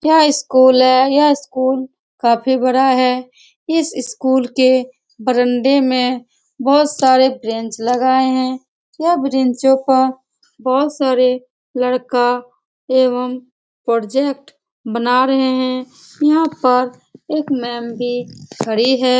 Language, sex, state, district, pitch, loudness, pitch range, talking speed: Hindi, female, Bihar, Saran, 260 Hz, -15 LUFS, 250-270 Hz, 110 wpm